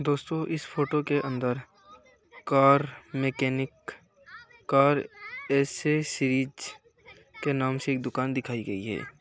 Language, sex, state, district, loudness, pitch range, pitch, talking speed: Hindi, male, Bihar, Saran, -27 LUFS, 130-155 Hz, 140 Hz, 110 wpm